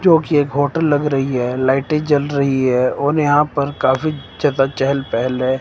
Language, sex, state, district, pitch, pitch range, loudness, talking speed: Hindi, male, Himachal Pradesh, Shimla, 140 Hz, 130-150 Hz, -17 LUFS, 205 wpm